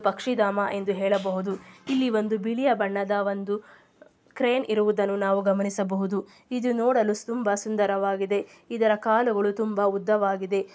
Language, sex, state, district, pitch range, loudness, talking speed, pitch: Kannada, female, Karnataka, Chamarajanagar, 200-220 Hz, -25 LUFS, 110 wpm, 205 Hz